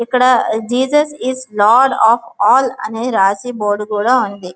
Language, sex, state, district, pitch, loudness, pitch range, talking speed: Telugu, female, Andhra Pradesh, Visakhapatnam, 240 Hz, -14 LUFS, 210-255 Hz, 145 wpm